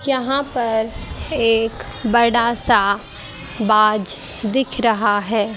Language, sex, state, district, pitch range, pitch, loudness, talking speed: Hindi, female, Haryana, Charkhi Dadri, 215-240 Hz, 225 Hz, -18 LUFS, 95 wpm